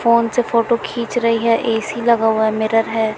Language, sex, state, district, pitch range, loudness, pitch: Hindi, female, Chhattisgarh, Bilaspur, 225-235 Hz, -17 LUFS, 230 Hz